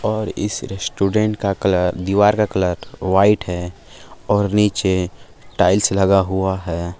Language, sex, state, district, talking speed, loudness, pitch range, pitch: Hindi, male, Jharkhand, Palamu, 135 wpm, -18 LUFS, 95-105 Hz, 95 Hz